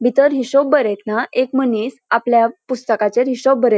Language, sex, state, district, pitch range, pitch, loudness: Konkani, female, Goa, North and South Goa, 230-265 Hz, 245 Hz, -17 LUFS